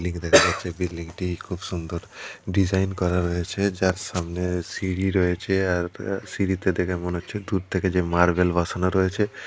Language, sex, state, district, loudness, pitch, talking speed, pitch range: Bengali, male, West Bengal, Kolkata, -24 LUFS, 90 Hz, 160 wpm, 90-95 Hz